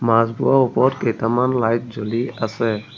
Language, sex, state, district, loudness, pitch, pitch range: Assamese, male, Assam, Sonitpur, -19 LUFS, 115 Hz, 115-125 Hz